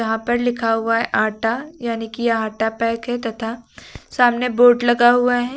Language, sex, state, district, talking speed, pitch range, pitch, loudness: Hindi, female, Uttar Pradesh, Lucknow, 195 wpm, 225-245 Hz, 235 Hz, -18 LUFS